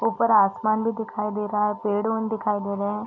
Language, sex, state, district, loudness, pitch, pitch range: Hindi, female, Uttar Pradesh, Deoria, -24 LUFS, 210 Hz, 210-225 Hz